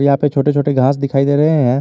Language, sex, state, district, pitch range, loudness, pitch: Hindi, male, Jharkhand, Garhwa, 135-145 Hz, -14 LUFS, 140 Hz